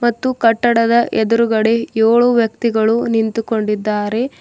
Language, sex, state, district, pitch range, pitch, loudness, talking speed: Kannada, female, Karnataka, Bidar, 220-235 Hz, 230 Hz, -15 LUFS, 80 wpm